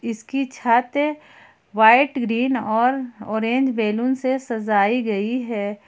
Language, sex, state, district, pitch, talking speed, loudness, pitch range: Hindi, female, Jharkhand, Ranchi, 235 Hz, 110 wpm, -20 LUFS, 220-260 Hz